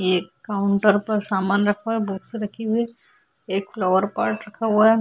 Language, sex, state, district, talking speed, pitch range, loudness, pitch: Hindi, female, Bihar, Vaishali, 240 wpm, 195-220 Hz, -22 LUFS, 205 Hz